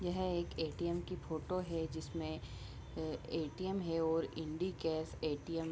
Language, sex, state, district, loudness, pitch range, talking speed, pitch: Hindi, female, Bihar, Bhagalpur, -40 LUFS, 155-175 Hz, 155 wpm, 160 Hz